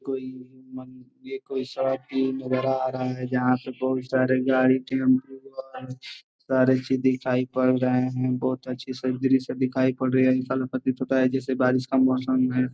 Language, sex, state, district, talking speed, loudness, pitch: Hindi, male, Bihar, Gopalganj, 175 wpm, -24 LUFS, 130 Hz